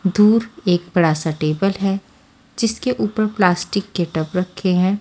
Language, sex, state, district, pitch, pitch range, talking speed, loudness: Hindi, female, Haryana, Charkhi Dadri, 190 Hz, 175-210 Hz, 155 wpm, -19 LUFS